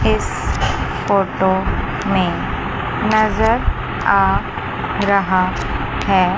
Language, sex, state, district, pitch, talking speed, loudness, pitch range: Hindi, female, Chandigarh, Chandigarh, 195 Hz, 65 wpm, -18 LUFS, 185-210 Hz